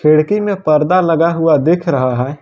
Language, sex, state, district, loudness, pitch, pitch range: Hindi, male, Jharkhand, Ranchi, -13 LUFS, 160 Hz, 150-175 Hz